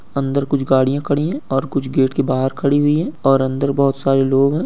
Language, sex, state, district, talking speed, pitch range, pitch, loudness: Hindi, male, Uttarakhand, Uttarkashi, 245 wpm, 135-140 Hz, 140 Hz, -17 LUFS